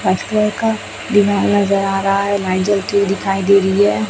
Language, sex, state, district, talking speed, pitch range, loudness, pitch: Hindi, female, Chhattisgarh, Raipur, 130 wpm, 195-205 Hz, -16 LUFS, 200 Hz